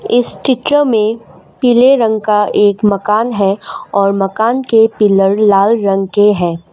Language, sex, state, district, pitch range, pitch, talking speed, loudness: Hindi, female, Assam, Kamrup Metropolitan, 200-230 Hz, 210 Hz, 150 wpm, -12 LUFS